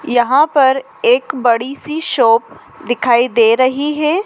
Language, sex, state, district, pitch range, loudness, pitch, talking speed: Hindi, female, Madhya Pradesh, Dhar, 240-300 Hz, -14 LUFS, 265 Hz, 140 wpm